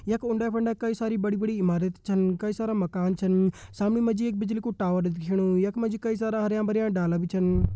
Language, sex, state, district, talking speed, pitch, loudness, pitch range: Hindi, male, Uttarakhand, Tehri Garhwal, 185 wpm, 210 Hz, -26 LUFS, 185-225 Hz